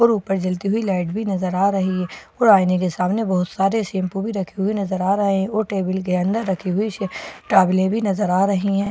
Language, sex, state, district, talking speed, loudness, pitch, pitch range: Hindi, female, Bihar, Katihar, 245 wpm, -20 LUFS, 195 Hz, 185-205 Hz